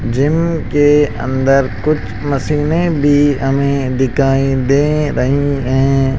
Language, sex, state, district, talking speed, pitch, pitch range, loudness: Hindi, male, Rajasthan, Jaipur, 105 wpm, 140 Hz, 130-145 Hz, -14 LUFS